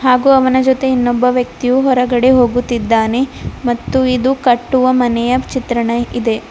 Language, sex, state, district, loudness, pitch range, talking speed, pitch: Kannada, female, Karnataka, Bidar, -14 LUFS, 240-260 Hz, 120 wpm, 250 Hz